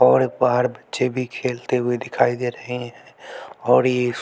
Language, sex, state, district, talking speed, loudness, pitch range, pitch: Hindi, male, Bihar, West Champaran, 170 wpm, -21 LUFS, 120-125 Hz, 125 Hz